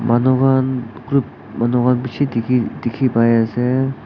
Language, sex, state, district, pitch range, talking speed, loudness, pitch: Nagamese, male, Nagaland, Dimapur, 120-130 Hz, 120 wpm, -17 LUFS, 125 Hz